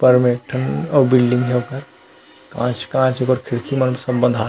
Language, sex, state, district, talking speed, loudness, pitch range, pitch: Chhattisgarhi, male, Chhattisgarh, Rajnandgaon, 215 wpm, -18 LUFS, 125-130 Hz, 125 Hz